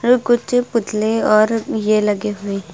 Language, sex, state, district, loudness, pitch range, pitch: Hindi, female, Himachal Pradesh, Shimla, -17 LUFS, 210-235 Hz, 215 Hz